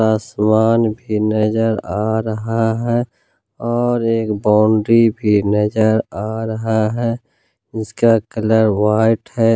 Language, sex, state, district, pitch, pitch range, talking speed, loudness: Hindi, male, Jharkhand, Ranchi, 110 Hz, 105-115 Hz, 115 wpm, -16 LUFS